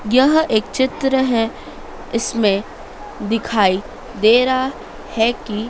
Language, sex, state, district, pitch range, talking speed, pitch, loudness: Hindi, female, Madhya Pradesh, Dhar, 215-260 Hz, 105 wpm, 230 Hz, -17 LUFS